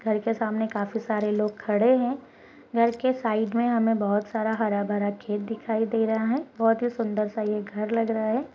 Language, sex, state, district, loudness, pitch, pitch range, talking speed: Hindi, female, Goa, North and South Goa, -26 LUFS, 220 Hz, 210-230 Hz, 210 wpm